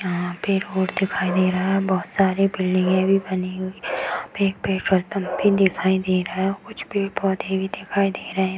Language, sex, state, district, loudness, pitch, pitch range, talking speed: Hindi, female, Bihar, Darbhanga, -22 LUFS, 190 Hz, 185-195 Hz, 230 wpm